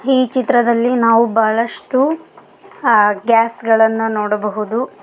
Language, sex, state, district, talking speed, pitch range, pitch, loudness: Kannada, female, Karnataka, Koppal, 95 wpm, 225-250 Hz, 230 Hz, -15 LUFS